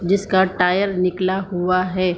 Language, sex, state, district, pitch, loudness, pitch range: Hindi, female, Bihar, Supaul, 185 Hz, -19 LUFS, 180-190 Hz